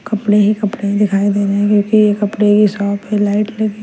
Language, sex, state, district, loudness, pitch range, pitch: Hindi, female, Punjab, Kapurthala, -14 LUFS, 205-210 Hz, 205 Hz